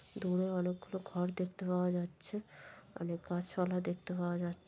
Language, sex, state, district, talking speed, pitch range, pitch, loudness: Bengali, female, West Bengal, Jhargram, 140 wpm, 175-185 Hz, 180 Hz, -38 LUFS